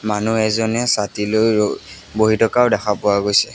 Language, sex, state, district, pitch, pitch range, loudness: Assamese, male, Assam, Sonitpur, 110 Hz, 105-110 Hz, -17 LUFS